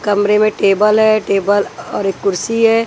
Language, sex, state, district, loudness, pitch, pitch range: Hindi, female, Chhattisgarh, Raipur, -14 LUFS, 210 Hz, 200-215 Hz